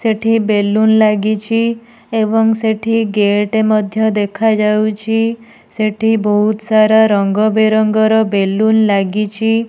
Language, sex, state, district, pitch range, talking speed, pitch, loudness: Odia, female, Odisha, Nuapada, 210-225 Hz, 105 wpm, 220 Hz, -13 LUFS